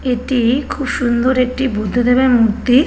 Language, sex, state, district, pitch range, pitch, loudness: Bengali, male, West Bengal, Kolkata, 240-260 Hz, 250 Hz, -15 LUFS